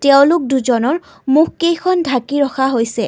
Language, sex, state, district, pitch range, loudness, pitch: Assamese, female, Assam, Kamrup Metropolitan, 260-320 Hz, -15 LUFS, 280 Hz